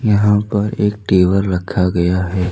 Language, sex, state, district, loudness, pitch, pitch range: Hindi, male, Jharkhand, Deoghar, -16 LUFS, 95 Hz, 90-105 Hz